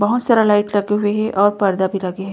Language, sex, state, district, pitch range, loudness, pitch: Chhattisgarhi, female, Chhattisgarh, Korba, 195-210 Hz, -17 LUFS, 205 Hz